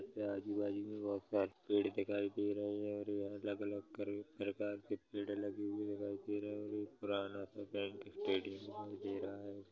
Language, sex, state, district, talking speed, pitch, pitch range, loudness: Hindi, male, Chhattisgarh, Korba, 190 wpm, 100 Hz, 100-105 Hz, -42 LUFS